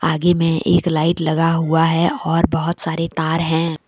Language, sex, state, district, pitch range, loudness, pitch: Hindi, female, Jharkhand, Deoghar, 160-165 Hz, -17 LUFS, 165 Hz